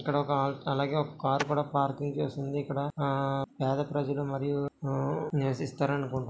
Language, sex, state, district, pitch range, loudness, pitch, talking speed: Telugu, male, Karnataka, Dharwad, 135-145 Hz, -31 LUFS, 140 Hz, 145 wpm